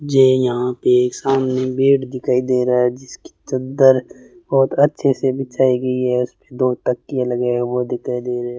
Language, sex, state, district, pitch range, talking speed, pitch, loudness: Hindi, male, Rajasthan, Bikaner, 125-135 Hz, 190 wpm, 130 Hz, -18 LUFS